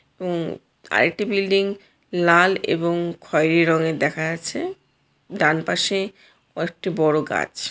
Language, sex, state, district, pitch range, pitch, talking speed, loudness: Bengali, female, West Bengal, Jalpaiguri, 160-195 Hz, 170 Hz, 115 wpm, -21 LUFS